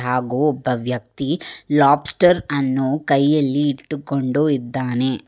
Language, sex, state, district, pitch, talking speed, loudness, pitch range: Kannada, female, Karnataka, Bangalore, 140 Hz, 90 wpm, -19 LUFS, 130-145 Hz